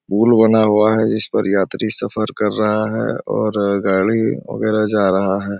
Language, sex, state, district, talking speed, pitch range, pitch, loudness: Hindi, male, Bihar, Supaul, 180 wpm, 100-110 Hz, 105 Hz, -17 LUFS